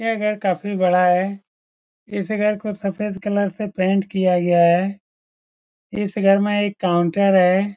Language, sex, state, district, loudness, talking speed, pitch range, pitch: Hindi, male, Bihar, Saran, -19 LUFS, 160 wpm, 185-205 Hz, 195 Hz